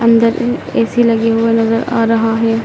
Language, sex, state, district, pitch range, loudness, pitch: Hindi, female, Madhya Pradesh, Dhar, 225-230 Hz, -13 LUFS, 230 Hz